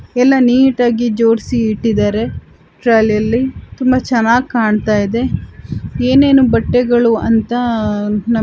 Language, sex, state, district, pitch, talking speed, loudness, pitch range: Kannada, female, Karnataka, Chamarajanagar, 235 Hz, 105 wpm, -13 LUFS, 220-250 Hz